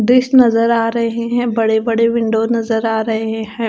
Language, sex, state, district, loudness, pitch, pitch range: Hindi, female, Chandigarh, Chandigarh, -15 LUFS, 230 Hz, 225-235 Hz